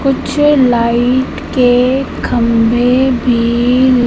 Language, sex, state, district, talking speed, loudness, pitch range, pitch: Hindi, female, Madhya Pradesh, Katni, 75 wpm, -12 LUFS, 240-260 Hz, 250 Hz